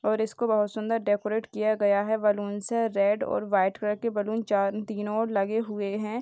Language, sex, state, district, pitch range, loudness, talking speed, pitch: Hindi, male, Bihar, Purnia, 205-220 Hz, -27 LUFS, 210 wpm, 210 Hz